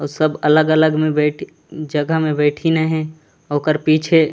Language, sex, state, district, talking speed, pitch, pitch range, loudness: Chhattisgarhi, male, Chhattisgarh, Raigarh, 165 wpm, 155 Hz, 150-160 Hz, -17 LUFS